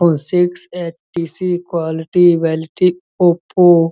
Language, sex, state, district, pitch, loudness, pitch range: Hindi, male, Uttar Pradesh, Muzaffarnagar, 175 Hz, -15 LUFS, 165-180 Hz